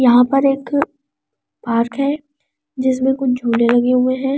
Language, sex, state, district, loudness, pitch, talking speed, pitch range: Hindi, female, Delhi, New Delhi, -17 LUFS, 265 Hz, 150 wpm, 250-285 Hz